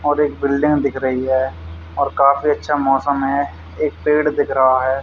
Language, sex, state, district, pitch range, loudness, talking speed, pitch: Hindi, male, Haryana, Charkhi Dadri, 130-145 Hz, -17 LUFS, 190 wpm, 140 Hz